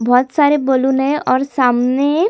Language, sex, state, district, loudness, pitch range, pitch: Hindi, female, Chhattisgarh, Sukma, -15 LUFS, 255-290 Hz, 265 Hz